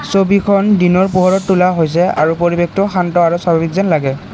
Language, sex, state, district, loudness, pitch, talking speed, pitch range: Assamese, male, Assam, Kamrup Metropolitan, -13 LUFS, 180 Hz, 165 wpm, 170-195 Hz